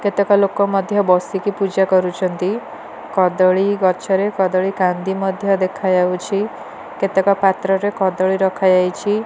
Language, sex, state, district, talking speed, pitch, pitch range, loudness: Odia, female, Odisha, Nuapada, 140 wpm, 190 Hz, 185-200 Hz, -17 LUFS